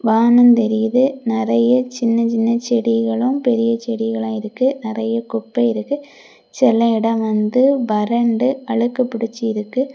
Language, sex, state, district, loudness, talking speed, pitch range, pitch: Tamil, female, Tamil Nadu, Kanyakumari, -17 LUFS, 110 wpm, 225-245 Hz, 230 Hz